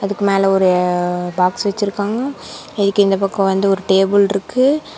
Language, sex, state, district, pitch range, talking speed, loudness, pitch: Tamil, female, Tamil Nadu, Namakkal, 190-205 Hz, 145 wpm, -16 LUFS, 195 Hz